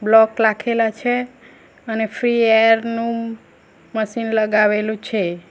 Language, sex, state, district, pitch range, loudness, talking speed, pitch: Gujarati, female, Gujarat, Valsad, 215-230 Hz, -18 LUFS, 110 wpm, 225 Hz